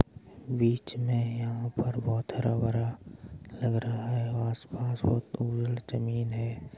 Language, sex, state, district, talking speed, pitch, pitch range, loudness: Hindi, male, Uttar Pradesh, Hamirpur, 125 wpm, 115 Hz, 115-120 Hz, -31 LUFS